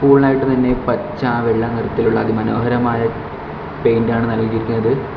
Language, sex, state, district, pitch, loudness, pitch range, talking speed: Malayalam, male, Kerala, Kollam, 115 Hz, -17 LUFS, 115-125 Hz, 95 wpm